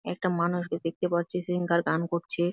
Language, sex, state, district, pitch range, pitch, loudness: Bengali, female, West Bengal, Jalpaiguri, 170-180 Hz, 170 Hz, -28 LUFS